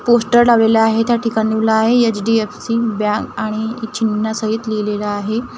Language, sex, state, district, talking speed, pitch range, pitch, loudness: Marathi, female, Maharashtra, Gondia, 140 wpm, 215-230 Hz, 220 Hz, -16 LUFS